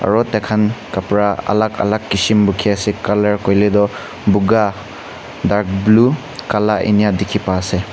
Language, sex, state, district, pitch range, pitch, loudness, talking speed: Nagamese, male, Nagaland, Kohima, 100-110 Hz, 105 Hz, -16 LUFS, 145 wpm